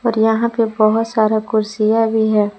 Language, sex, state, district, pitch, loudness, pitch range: Hindi, female, Jharkhand, Palamu, 220 Hz, -16 LUFS, 215-225 Hz